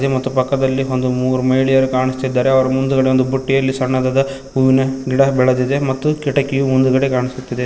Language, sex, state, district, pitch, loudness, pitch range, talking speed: Kannada, male, Karnataka, Koppal, 130 Hz, -16 LUFS, 130-135 Hz, 140 wpm